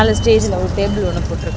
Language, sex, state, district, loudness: Tamil, female, Tamil Nadu, Chennai, -16 LUFS